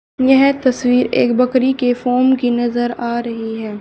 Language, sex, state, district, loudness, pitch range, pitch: Hindi, female, Haryana, Charkhi Dadri, -15 LUFS, 240-255 Hz, 245 Hz